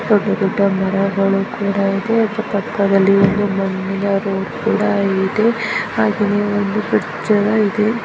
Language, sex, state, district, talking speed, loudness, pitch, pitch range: Kannada, female, Karnataka, Bellary, 125 wpm, -17 LUFS, 200 Hz, 195-210 Hz